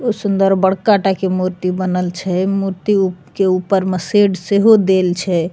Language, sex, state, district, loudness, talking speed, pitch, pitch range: Maithili, female, Bihar, Begusarai, -15 LUFS, 185 wpm, 190 Hz, 185-195 Hz